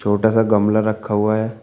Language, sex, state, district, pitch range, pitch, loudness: Hindi, male, Uttar Pradesh, Shamli, 105-110 Hz, 110 Hz, -17 LUFS